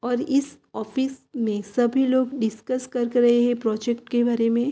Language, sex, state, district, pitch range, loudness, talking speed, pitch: Hindi, female, Uttar Pradesh, Hamirpur, 235-260 Hz, -23 LUFS, 180 wpm, 245 Hz